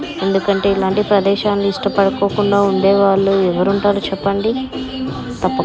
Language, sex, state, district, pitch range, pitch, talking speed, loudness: Telugu, female, Andhra Pradesh, Anantapur, 195-205 Hz, 200 Hz, 75 wpm, -16 LUFS